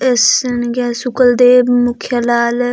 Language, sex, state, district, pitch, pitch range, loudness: Sadri, female, Chhattisgarh, Jashpur, 245 Hz, 240-250 Hz, -13 LUFS